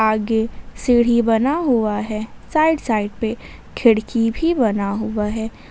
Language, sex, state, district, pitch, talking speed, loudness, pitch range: Hindi, female, Jharkhand, Ranchi, 225 Hz, 135 wpm, -19 LUFS, 215-240 Hz